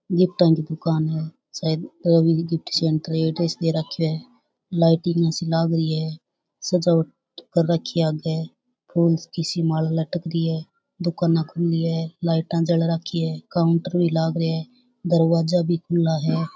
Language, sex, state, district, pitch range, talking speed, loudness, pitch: Rajasthani, female, Rajasthan, Churu, 160-170 Hz, 150 wpm, -22 LUFS, 165 Hz